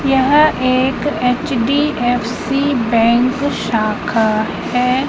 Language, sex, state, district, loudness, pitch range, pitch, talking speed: Hindi, female, Madhya Pradesh, Katni, -15 LUFS, 235-275 Hz, 250 Hz, 70 wpm